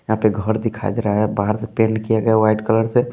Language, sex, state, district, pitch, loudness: Hindi, male, Bihar, West Champaran, 110 Hz, -18 LUFS